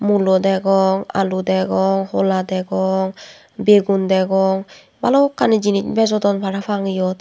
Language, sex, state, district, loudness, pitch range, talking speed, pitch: Chakma, female, Tripura, West Tripura, -17 LUFS, 190-200 Hz, 110 wpm, 195 Hz